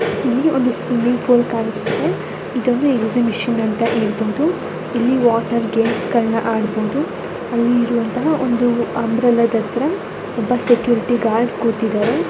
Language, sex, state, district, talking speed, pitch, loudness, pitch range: Kannada, female, Karnataka, Bellary, 110 wpm, 235 Hz, -18 LUFS, 225-245 Hz